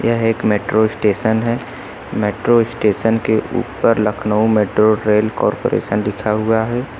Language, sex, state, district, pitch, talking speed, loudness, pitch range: Hindi, male, Uttar Pradesh, Lucknow, 110 Hz, 135 wpm, -16 LUFS, 105-115 Hz